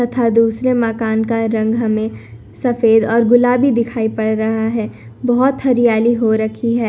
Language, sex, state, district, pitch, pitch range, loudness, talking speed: Hindi, female, Punjab, Kapurthala, 225 Hz, 220-240 Hz, -15 LUFS, 155 wpm